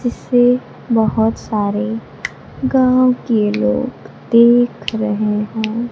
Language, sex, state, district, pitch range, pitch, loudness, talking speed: Hindi, female, Bihar, Kaimur, 215-245 Hz, 225 Hz, -16 LUFS, 90 wpm